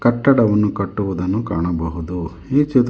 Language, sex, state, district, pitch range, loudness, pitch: Kannada, male, Karnataka, Bangalore, 90-120 Hz, -19 LUFS, 100 Hz